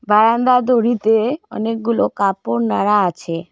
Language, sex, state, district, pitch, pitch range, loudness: Bengali, female, West Bengal, Cooch Behar, 220 Hz, 195-240 Hz, -17 LUFS